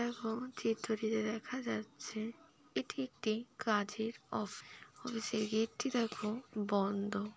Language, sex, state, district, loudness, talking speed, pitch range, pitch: Bengali, female, West Bengal, Paschim Medinipur, -38 LUFS, 120 wpm, 215-240 Hz, 220 Hz